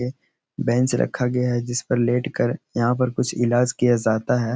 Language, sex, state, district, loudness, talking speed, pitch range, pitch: Hindi, male, Uttar Pradesh, Etah, -22 LUFS, 210 wpm, 120-125 Hz, 125 Hz